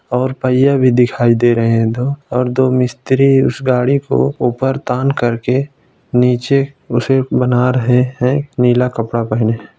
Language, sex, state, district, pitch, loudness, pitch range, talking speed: Hindi, male, Uttar Pradesh, Ghazipur, 125 Hz, -14 LUFS, 120-135 Hz, 155 wpm